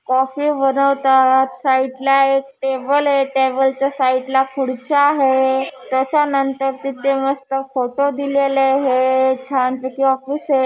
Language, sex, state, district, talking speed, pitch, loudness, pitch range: Marathi, female, Maharashtra, Chandrapur, 115 wpm, 270 Hz, -17 LUFS, 265-275 Hz